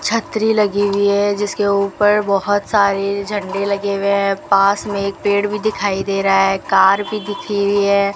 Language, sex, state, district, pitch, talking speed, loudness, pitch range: Hindi, female, Rajasthan, Bikaner, 200 Hz, 200 wpm, -16 LUFS, 200-205 Hz